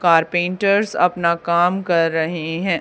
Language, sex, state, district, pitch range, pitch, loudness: Hindi, female, Haryana, Charkhi Dadri, 165-180 Hz, 175 Hz, -18 LUFS